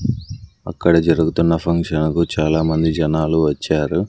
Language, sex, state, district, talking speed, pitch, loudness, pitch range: Telugu, male, Andhra Pradesh, Sri Satya Sai, 105 wpm, 80 Hz, -17 LUFS, 80-85 Hz